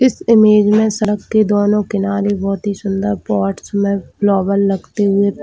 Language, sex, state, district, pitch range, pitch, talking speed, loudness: Hindi, female, Chhattisgarh, Raigarh, 195-210 Hz, 200 Hz, 165 wpm, -15 LUFS